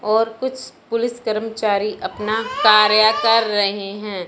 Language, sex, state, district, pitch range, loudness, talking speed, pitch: Hindi, male, Punjab, Fazilka, 210-230 Hz, -18 LUFS, 125 wpm, 215 Hz